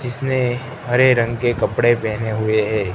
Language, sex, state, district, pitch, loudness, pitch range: Hindi, male, Gujarat, Gandhinagar, 120 Hz, -18 LUFS, 110-125 Hz